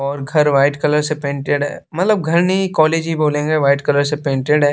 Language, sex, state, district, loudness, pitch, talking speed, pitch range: Hindi, male, Bihar, West Champaran, -16 LUFS, 150 Hz, 230 wpm, 140-155 Hz